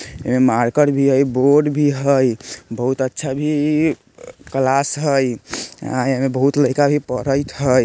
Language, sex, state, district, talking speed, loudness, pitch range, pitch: Bajjika, male, Bihar, Vaishali, 160 wpm, -17 LUFS, 130-145 Hz, 135 Hz